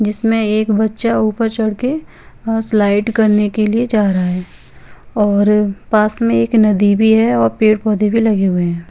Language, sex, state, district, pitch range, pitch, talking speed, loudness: Hindi, female, Chandigarh, Chandigarh, 205-225 Hz, 215 Hz, 175 wpm, -14 LUFS